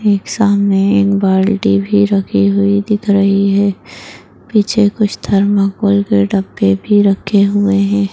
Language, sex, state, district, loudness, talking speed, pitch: Hindi, female, Chhattisgarh, Bastar, -13 LUFS, 135 wpm, 200 Hz